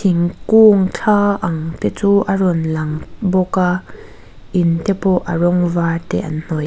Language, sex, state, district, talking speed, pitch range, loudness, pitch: Mizo, female, Mizoram, Aizawl, 170 wpm, 170-195 Hz, -16 LUFS, 180 Hz